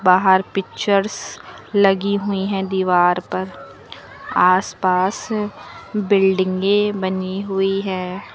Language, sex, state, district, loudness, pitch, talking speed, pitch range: Hindi, female, Uttar Pradesh, Lucknow, -19 LUFS, 195 Hz, 95 wpm, 185-200 Hz